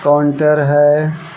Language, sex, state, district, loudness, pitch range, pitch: Hindi, male, Jharkhand, Palamu, -13 LUFS, 145-155 Hz, 150 Hz